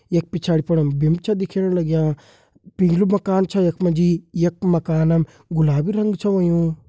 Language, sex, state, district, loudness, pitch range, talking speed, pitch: Hindi, male, Uttarakhand, Tehri Garhwal, -19 LUFS, 160-190 Hz, 175 wpm, 170 Hz